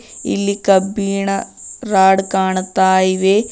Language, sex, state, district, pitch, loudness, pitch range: Kannada, female, Karnataka, Bidar, 195 Hz, -15 LUFS, 190-200 Hz